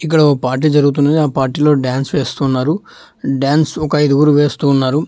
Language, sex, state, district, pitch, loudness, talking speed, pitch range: Telugu, male, Telangana, Hyderabad, 145 Hz, -14 LUFS, 140 wpm, 135-150 Hz